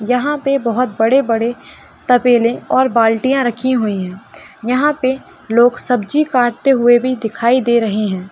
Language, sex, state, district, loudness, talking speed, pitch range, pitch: Hindi, female, Bihar, Bhagalpur, -15 LUFS, 160 wpm, 225-260 Hz, 245 Hz